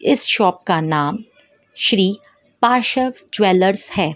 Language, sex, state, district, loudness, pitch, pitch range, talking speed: Hindi, female, Madhya Pradesh, Dhar, -17 LUFS, 200 Hz, 185-240 Hz, 115 wpm